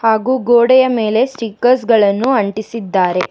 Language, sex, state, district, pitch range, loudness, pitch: Kannada, female, Karnataka, Bangalore, 215-250 Hz, -14 LUFS, 230 Hz